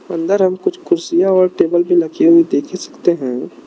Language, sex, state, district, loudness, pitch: Hindi, male, Arunachal Pradesh, Lower Dibang Valley, -15 LUFS, 185 Hz